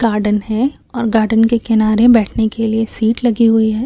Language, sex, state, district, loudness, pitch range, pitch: Hindi, female, Chhattisgarh, Raipur, -14 LUFS, 220-230 Hz, 225 Hz